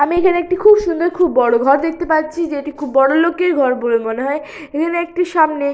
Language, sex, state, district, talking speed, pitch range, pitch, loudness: Bengali, female, West Bengal, Purulia, 230 wpm, 280-345 Hz, 310 Hz, -15 LUFS